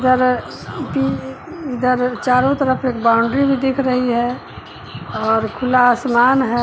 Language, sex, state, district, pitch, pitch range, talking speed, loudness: Hindi, female, Uttar Pradesh, Lucknow, 250 Hz, 240-260 Hz, 135 wpm, -17 LUFS